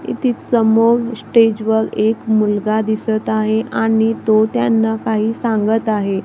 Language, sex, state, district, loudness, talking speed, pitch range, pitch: Marathi, female, Maharashtra, Gondia, -16 LUFS, 125 wpm, 215-225 Hz, 220 Hz